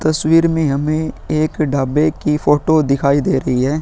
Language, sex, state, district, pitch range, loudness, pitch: Hindi, male, Uttar Pradesh, Muzaffarnagar, 140-155 Hz, -16 LUFS, 150 Hz